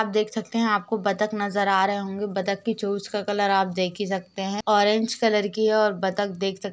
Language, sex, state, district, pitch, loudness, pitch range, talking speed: Hindi, female, Uttar Pradesh, Jalaun, 205 Hz, -24 LUFS, 195-215 Hz, 260 wpm